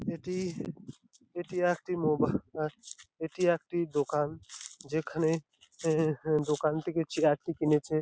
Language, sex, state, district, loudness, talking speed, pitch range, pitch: Bengali, male, West Bengal, Dakshin Dinajpur, -31 LUFS, 120 wpm, 150-175 Hz, 160 Hz